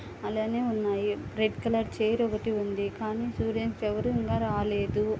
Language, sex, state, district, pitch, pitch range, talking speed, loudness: Telugu, female, Andhra Pradesh, Anantapur, 215 Hz, 200-225 Hz, 140 wpm, -29 LUFS